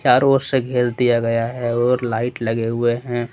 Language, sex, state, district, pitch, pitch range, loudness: Hindi, male, Jharkhand, Deoghar, 120 Hz, 115-125 Hz, -19 LUFS